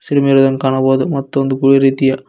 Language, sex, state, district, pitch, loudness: Kannada, male, Karnataka, Koppal, 135 Hz, -13 LUFS